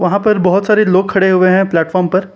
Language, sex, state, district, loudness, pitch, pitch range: Hindi, male, Jharkhand, Palamu, -12 LUFS, 190 Hz, 185-200 Hz